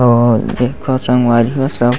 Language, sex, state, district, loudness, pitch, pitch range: Chhattisgarhi, male, Chhattisgarh, Bastar, -14 LUFS, 125 Hz, 120-130 Hz